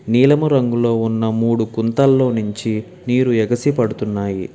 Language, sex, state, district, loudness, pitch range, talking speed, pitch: Telugu, male, Telangana, Hyderabad, -17 LUFS, 110-130 Hz, 120 wpm, 115 Hz